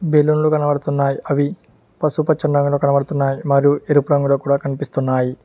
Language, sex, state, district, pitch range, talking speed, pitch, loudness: Telugu, male, Telangana, Hyderabad, 140-150 Hz, 130 wpm, 145 Hz, -17 LUFS